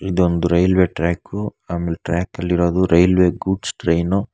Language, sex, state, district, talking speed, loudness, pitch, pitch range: Kannada, male, Karnataka, Bangalore, 110 wpm, -18 LUFS, 90 Hz, 85-95 Hz